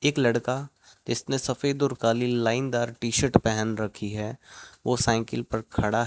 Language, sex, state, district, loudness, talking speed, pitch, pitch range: Hindi, male, Rajasthan, Bikaner, -26 LUFS, 180 wpm, 120 Hz, 110-130 Hz